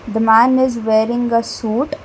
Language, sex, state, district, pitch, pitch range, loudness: English, female, Karnataka, Bangalore, 230 Hz, 225-245 Hz, -15 LUFS